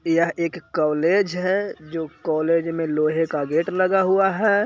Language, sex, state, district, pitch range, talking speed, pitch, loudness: Hindi, male, Bihar, Jahanabad, 160-190 Hz, 165 wpm, 165 Hz, -21 LUFS